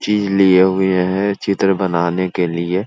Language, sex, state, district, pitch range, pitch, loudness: Hindi, male, Uttar Pradesh, Hamirpur, 90-95 Hz, 95 Hz, -16 LUFS